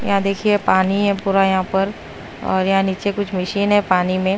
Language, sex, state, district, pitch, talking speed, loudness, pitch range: Hindi, female, Punjab, Kapurthala, 195 Hz, 205 wpm, -18 LUFS, 190-200 Hz